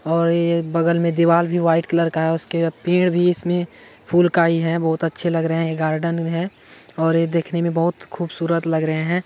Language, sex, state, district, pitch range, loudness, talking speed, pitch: Hindi, male, Bihar, Madhepura, 165-170 Hz, -19 LUFS, 225 wpm, 170 Hz